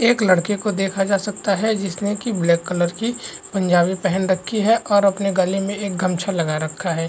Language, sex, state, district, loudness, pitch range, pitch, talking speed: Hindi, male, Chhattisgarh, Bastar, -20 LUFS, 185-205 Hz, 195 Hz, 205 wpm